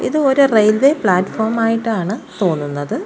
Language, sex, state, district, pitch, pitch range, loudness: Malayalam, female, Kerala, Kollam, 220 Hz, 190-265 Hz, -16 LUFS